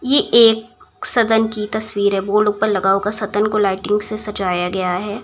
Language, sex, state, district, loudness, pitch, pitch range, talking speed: Hindi, female, Uttar Pradesh, Budaun, -17 LUFS, 210 Hz, 200-220 Hz, 195 wpm